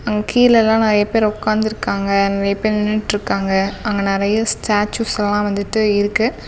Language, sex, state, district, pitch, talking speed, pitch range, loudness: Tamil, female, Tamil Nadu, Namakkal, 210 Hz, 120 wpm, 200-220 Hz, -17 LUFS